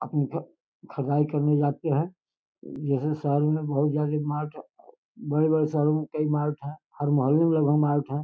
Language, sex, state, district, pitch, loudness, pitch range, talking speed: Hindi, male, Uttar Pradesh, Gorakhpur, 150 Hz, -25 LUFS, 145-155 Hz, 160 wpm